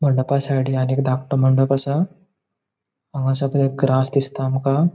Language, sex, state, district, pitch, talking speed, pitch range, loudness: Konkani, male, Goa, North and South Goa, 135 Hz, 145 wpm, 130-140 Hz, -19 LUFS